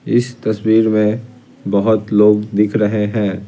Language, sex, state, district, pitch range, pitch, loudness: Hindi, male, Bihar, Patna, 105-110 Hz, 105 Hz, -15 LUFS